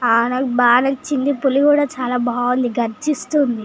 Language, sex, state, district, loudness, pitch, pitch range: Telugu, female, Telangana, Nalgonda, -17 LUFS, 255 Hz, 245-280 Hz